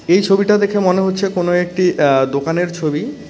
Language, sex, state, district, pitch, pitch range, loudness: Bengali, male, West Bengal, Cooch Behar, 180 Hz, 165-195 Hz, -15 LUFS